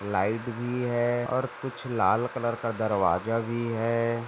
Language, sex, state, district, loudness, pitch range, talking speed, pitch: Hindi, male, Maharashtra, Dhule, -28 LUFS, 115-120 Hz, 155 wpm, 115 Hz